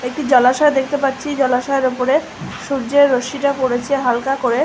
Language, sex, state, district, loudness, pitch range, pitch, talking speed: Bengali, female, West Bengal, Malda, -16 LUFS, 250-280 Hz, 270 Hz, 140 wpm